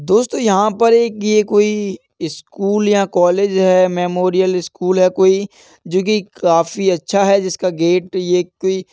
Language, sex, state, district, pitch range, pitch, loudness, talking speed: Hindi, male, Uttar Pradesh, Etah, 180-200 Hz, 190 Hz, -15 LUFS, 160 wpm